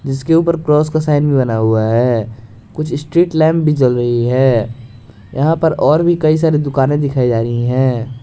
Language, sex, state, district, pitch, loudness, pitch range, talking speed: Hindi, male, Jharkhand, Garhwa, 135 Hz, -14 LUFS, 120-155 Hz, 195 wpm